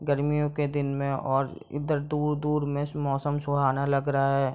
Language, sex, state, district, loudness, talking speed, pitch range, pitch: Hindi, male, Bihar, East Champaran, -27 LUFS, 185 wpm, 140-150 Hz, 145 Hz